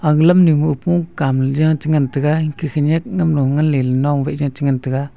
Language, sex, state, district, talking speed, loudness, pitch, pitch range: Wancho, male, Arunachal Pradesh, Longding, 195 wpm, -16 LUFS, 150 Hz, 140-155 Hz